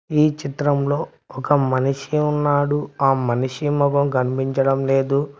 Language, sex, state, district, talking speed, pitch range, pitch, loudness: Telugu, male, Telangana, Mahabubabad, 110 wpm, 135-145 Hz, 140 Hz, -20 LUFS